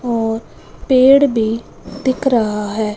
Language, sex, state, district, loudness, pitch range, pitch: Hindi, male, Punjab, Fazilka, -15 LUFS, 220-260 Hz, 230 Hz